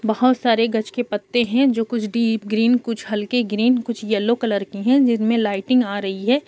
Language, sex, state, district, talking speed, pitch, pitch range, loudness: Hindi, male, Bihar, Gopalganj, 215 wpm, 230 Hz, 215-245 Hz, -19 LUFS